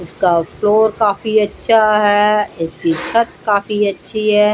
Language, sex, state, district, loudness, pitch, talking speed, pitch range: Hindi, female, Odisha, Malkangiri, -15 LUFS, 210 Hz, 130 wpm, 195-215 Hz